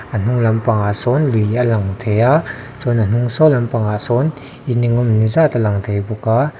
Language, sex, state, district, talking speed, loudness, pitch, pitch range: Mizo, male, Mizoram, Aizawl, 220 wpm, -16 LUFS, 120 Hz, 110-125 Hz